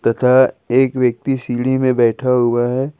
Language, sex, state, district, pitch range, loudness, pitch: Hindi, male, Jharkhand, Ranchi, 120-130 Hz, -16 LUFS, 125 Hz